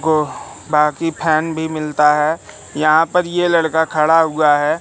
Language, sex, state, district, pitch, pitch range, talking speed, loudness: Hindi, male, Madhya Pradesh, Katni, 155 Hz, 150-160 Hz, 160 wpm, -16 LUFS